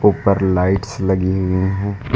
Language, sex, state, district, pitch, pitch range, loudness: Hindi, male, Uttar Pradesh, Lucknow, 95 Hz, 95-100 Hz, -18 LUFS